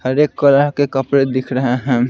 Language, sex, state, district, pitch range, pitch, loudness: Hindi, male, Bihar, Patna, 130-140 Hz, 135 Hz, -15 LUFS